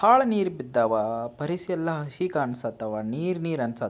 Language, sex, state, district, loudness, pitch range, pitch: Kannada, male, Karnataka, Belgaum, -27 LUFS, 115-180 Hz, 150 Hz